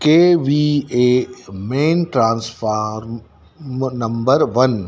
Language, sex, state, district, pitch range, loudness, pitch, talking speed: Hindi, male, Madhya Pradesh, Dhar, 115-145 Hz, -17 LUFS, 125 Hz, 100 wpm